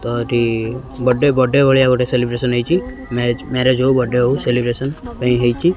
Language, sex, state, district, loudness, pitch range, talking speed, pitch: Odia, male, Odisha, Khordha, -16 LUFS, 120-130 Hz, 155 wpm, 125 Hz